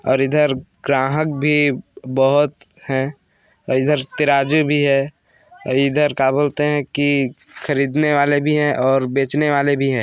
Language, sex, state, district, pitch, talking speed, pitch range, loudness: Hindi, male, Chhattisgarh, Balrampur, 140 Hz, 160 wpm, 135-150 Hz, -18 LUFS